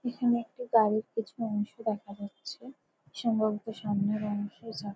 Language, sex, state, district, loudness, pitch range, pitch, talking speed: Bengali, female, West Bengal, Jalpaiguri, -31 LUFS, 210-235 Hz, 220 Hz, 145 wpm